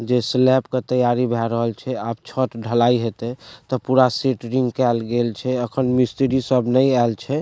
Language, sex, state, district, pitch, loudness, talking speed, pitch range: Maithili, male, Bihar, Supaul, 125 Hz, -20 LUFS, 185 wpm, 115-130 Hz